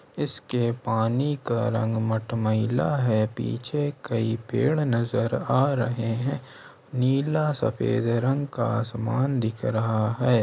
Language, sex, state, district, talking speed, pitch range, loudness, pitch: Hindi, male, Chhattisgarh, Bilaspur, 120 wpm, 115-135 Hz, -25 LUFS, 120 Hz